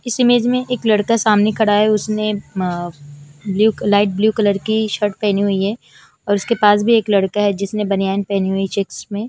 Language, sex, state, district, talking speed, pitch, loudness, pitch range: Hindi, female, Chandigarh, Chandigarh, 205 wpm, 205 Hz, -17 LUFS, 195-220 Hz